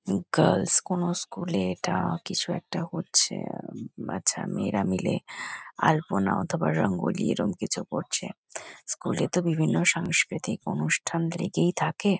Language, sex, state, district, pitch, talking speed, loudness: Bengali, female, West Bengal, Kolkata, 170 Hz, 130 wpm, -27 LUFS